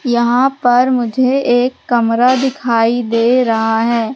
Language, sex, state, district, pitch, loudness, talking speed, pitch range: Hindi, female, Madhya Pradesh, Katni, 245 Hz, -13 LUFS, 130 wpm, 230-255 Hz